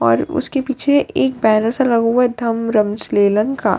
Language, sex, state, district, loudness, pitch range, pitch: Hindi, female, Bihar, Katihar, -16 LUFS, 215-260 Hz, 230 Hz